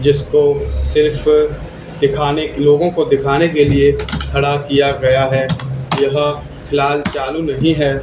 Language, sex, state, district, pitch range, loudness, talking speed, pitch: Hindi, male, Haryana, Charkhi Dadri, 140-150 Hz, -15 LUFS, 125 wpm, 145 Hz